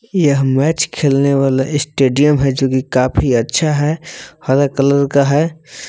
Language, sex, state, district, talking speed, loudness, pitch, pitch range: Hindi, male, Jharkhand, Palamu, 165 wpm, -14 LUFS, 140 Hz, 135-150 Hz